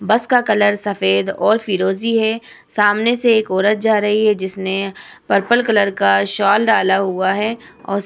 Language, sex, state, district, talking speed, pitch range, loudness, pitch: Hindi, female, Uttar Pradesh, Muzaffarnagar, 180 wpm, 195-220 Hz, -16 LUFS, 205 Hz